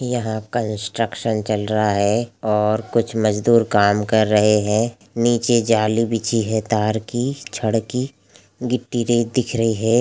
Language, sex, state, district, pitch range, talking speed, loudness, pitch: Hindi, male, Bihar, Sitamarhi, 105-120 Hz, 150 wpm, -19 LUFS, 110 Hz